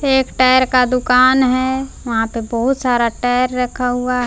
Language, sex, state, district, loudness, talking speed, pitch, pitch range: Hindi, female, Jharkhand, Palamu, -15 LUFS, 195 wpm, 250 Hz, 245-260 Hz